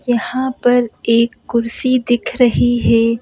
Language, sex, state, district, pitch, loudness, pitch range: Hindi, female, Madhya Pradesh, Bhopal, 240 Hz, -15 LUFS, 230-250 Hz